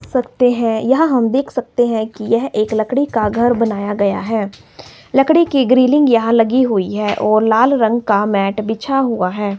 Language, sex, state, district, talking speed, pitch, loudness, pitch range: Hindi, male, Himachal Pradesh, Shimla, 195 wpm, 230 Hz, -15 LUFS, 215-255 Hz